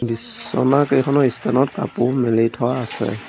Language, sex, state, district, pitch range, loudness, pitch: Assamese, male, Assam, Sonitpur, 115-135 Hz, -19 LUFS, 125 Hz